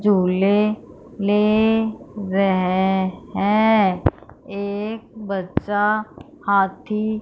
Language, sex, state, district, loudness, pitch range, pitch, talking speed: Hindi, female, Punjab, Fazilka, -20 LUFS, 195-215 Hz, 205 Hz, 60 wpm